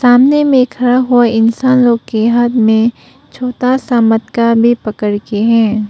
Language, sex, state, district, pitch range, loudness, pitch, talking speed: Hindi, female, Arunachal Pradesh, Papum Pare, 225-250 Hz, -11 LUFS, 235 Hz, 150 wpm